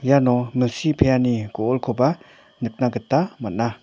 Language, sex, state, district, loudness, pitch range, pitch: Garo, male, Meghalaya, North Garo Hills, -21 LUFS, 120-140 Hz, 125 Hz